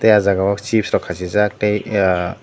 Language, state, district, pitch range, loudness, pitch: Kokborok, Tripura, Dhalai, 95-105 Hz, -17 LUFS, 100 Hz